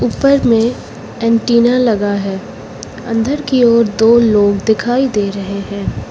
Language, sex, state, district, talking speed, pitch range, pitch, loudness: Hindi, female, Uttar Pradesh, Lucknow, 135 wpm, 200-240 Hz, 225 Hz, -13 LUFS